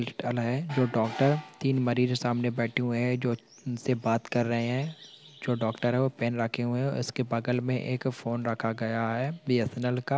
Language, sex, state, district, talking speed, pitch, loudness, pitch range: Hindi, male, Andhra Pradesh, Anantapur, 195 wpm, 125 Hz, -29 LUFS, 120-130 Hz